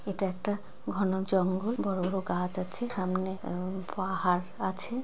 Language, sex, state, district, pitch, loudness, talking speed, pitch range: Bengali, female, West Bengal, Jalpaiguri, 190 Hz, -31 LUFS, 145 wpm, 185-195 Hz